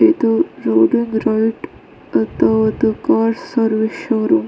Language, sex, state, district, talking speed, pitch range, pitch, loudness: Kannada, female, Karnataka, Dakshina Kannada, 120 wpm, 220-230 Hz, 220 Hz, -16 LUFS